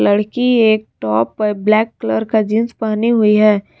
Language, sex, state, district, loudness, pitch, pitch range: Hindi, female, Jharkhand, Garhwa, -15 LUFS, 215 Hz, 205-225 Hz